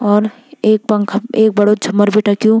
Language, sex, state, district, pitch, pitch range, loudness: Garhwali, female, Uttarakhand, Tehri Garhwal, 215 Hz, 205-220 Hz, -14 LUFS